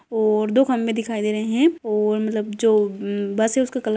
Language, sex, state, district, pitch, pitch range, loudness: Hindi, female, Bihar, Jamui, 215 Hz, 215-235 Hz, -21 LUFS